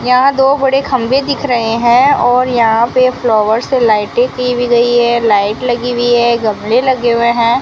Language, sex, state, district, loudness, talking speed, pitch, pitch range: Hindi, female, Rajasthan, Bikaner, -11 LUFS, 190 wpm, 240 Hz, 230-255 Hz